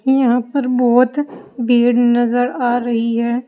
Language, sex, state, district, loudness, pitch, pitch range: Hindi, female, Uttar Pradesh, Saharanpur, -15 LUFS, 245 Hz, 240-250 Hz